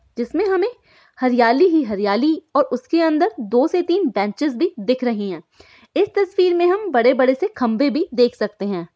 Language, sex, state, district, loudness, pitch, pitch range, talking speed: Hindi, female, Maharashtra, Aurangabad, -18 LUFS, 275 Hz, 235-355 Hz, 185 wpm